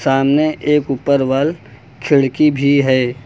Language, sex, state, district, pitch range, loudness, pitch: Hindi, male, Uttar Pradesh, Lucknow, 130-145 Hz, -15 LUFS, 140 Hz